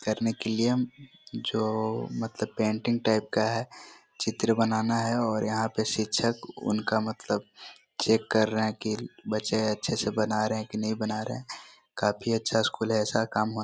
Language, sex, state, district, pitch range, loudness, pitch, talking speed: Hindi, male, Chhattisgarh, Korba, 110-115 Hz, -28 LUFS, 110 Hz, 175 wpm